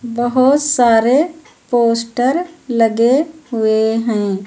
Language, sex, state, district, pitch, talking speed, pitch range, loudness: Hindi, female, Uttar Pradesh, Lucknow, 240 Hz, 80 wpm, 225-275 Hz, -15 LUFS